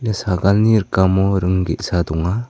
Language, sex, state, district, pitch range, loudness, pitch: Garo, male, Meghalaya, South Garo Hills, 90-100 Hz, -17 LUFS, 95 Hz